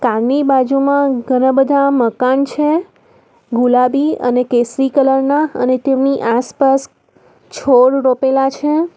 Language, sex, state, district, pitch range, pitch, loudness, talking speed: Gujarati, female, Gujarat, Valsad, 250-280 Hz, 270 Hz, -14 LUFS, 120 wpm